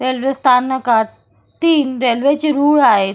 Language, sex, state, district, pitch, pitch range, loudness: Marathi, female, Maharashtra, Solapur, 260 Hz, 250-285 Hz, -14 LUFS